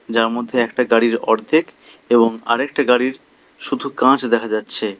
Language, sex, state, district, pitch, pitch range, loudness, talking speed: Bengali, male, West Bengal, Alipurduar, 120 Hz, 115-125 Hz, -17 LUFS, 145 wpm